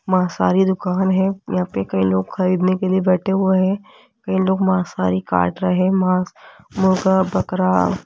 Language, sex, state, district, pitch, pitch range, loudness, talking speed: Hindi, female, Rajasthan, Jaipur, 185 Hz, 140-190 Hz, -18 LUFS, 165 wpm